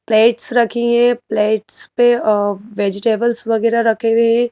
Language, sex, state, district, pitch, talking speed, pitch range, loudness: Hindi, female, Madhya Pradesh, Bhopal, 230 Hz, 145 wpm, 220-235 Hz, -15 LUFS